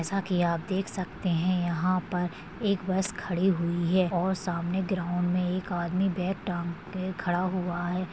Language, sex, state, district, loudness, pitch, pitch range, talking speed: Hindi, female, Maharashtra, Nagpur, -29 LUFS, 180 Hz, 175-190 Hz, 185 wpm